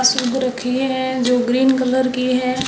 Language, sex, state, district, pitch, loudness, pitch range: Hindi, female, Rajasthan, Jaisalmer, 255 Hz, -18 LUFS, 250-260 Hz